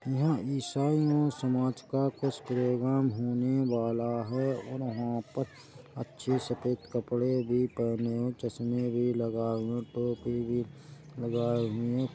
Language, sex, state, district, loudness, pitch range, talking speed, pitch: Hindi, female, Chhattisgarh, Rajnandgaon, -31 LUFS, 120-135 Hz, 140 wpm, 125 Hz